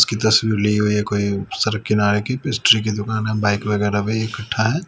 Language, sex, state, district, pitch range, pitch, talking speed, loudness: Hindi, male, Delhi, New Delhi, 105-110 Hz, 105 Hz, 210 wpm, -19 LUFS